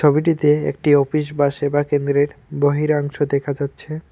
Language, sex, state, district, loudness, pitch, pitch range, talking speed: Bengali, male, West Bengal, Alipurduar, -19 LUFS, 145 Hz, 145-150 Hz, 130 wpm